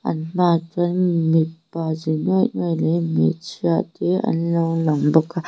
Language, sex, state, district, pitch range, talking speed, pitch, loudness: Mizo, female, Mizoram, Aizawl, 150-170 Hz, 155 wpm, 165 Hz, -20 LUFS